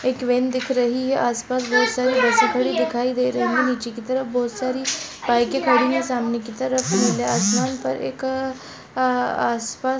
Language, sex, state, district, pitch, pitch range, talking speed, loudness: Hindi, female, Chhattisgarh, Bastar, 245 Hz, 235-255 Hz, 190 wpm, -21 LUFS